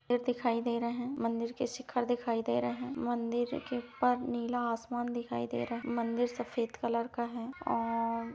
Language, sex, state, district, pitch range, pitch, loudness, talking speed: Hindi, female, Bihar, Saran, 230-245 Hz, 240 Hz, -34 LUFS, 185 wpm